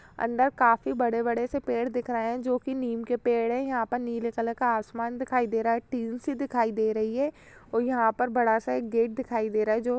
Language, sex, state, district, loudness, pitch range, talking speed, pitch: Hindi, female, Uttar Pradesh, Jyotiba Phule Nagar, -27 LUFS, 230-250 Hz, 260 wpm, 235 Hz